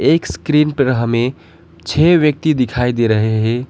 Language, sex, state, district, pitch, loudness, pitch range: Hindi, male, West Bengal, Alipurduar, 125 Hz, -15 LUFS, 110-150 Hz